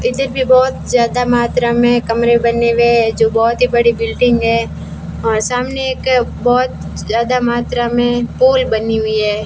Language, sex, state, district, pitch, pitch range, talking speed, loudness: Hindi, female, Rajasthan, Bikaner, 240 Hz, 230-250 Hz, 170 wpm, -14 LUFS